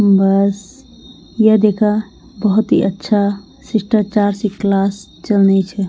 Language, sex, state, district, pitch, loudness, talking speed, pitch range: Garhwali, female, Uttarakhand, Tehri Garhwal, 205 Hz, -15 LUFS, 110 wpm, 195-215 Hz